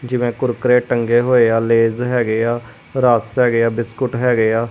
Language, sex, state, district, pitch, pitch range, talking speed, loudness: Punjabi, female, Punjab, Kapurthala, 120 Hz, 115-125 Hz, 180 wpm, -16 LUFS